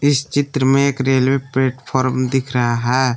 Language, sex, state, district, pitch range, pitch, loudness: Hindi, male, Jharkhand, Palamu, 130-135 Hz, 130 Hz, -17 LUFS